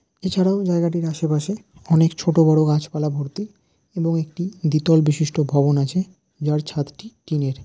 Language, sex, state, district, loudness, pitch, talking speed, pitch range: Bengali, male, West Bengal, Dakshin Dinajpur, -20 LUFS, 160 Hz, 135 wpm, 150-175 Hz